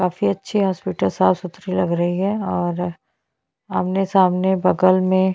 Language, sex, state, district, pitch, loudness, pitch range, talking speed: Hindi, female, Chhattisgarh, Bastar, 185 Hz, -20 LUFS, 175-190 Hz, 170 wpm